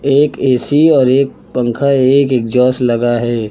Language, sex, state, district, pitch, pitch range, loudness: Hindi, male, Uttar Pradesh, Lucknow, 130 Hz, 120-140 Hz, -12 LUFS